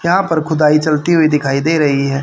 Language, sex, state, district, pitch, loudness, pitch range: Hindi, male, Haryana, Charkhi Dadri, 155 Hz, -13 LUFS, 145-160 Hz